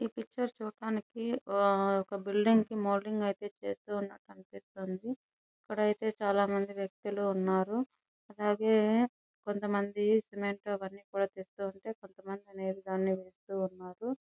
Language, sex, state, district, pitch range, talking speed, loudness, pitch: Telugu, female, Andhra Pradesh, Chittoor, 195-215 Hz, 100 wpm, -33 LUFS, 200 Hz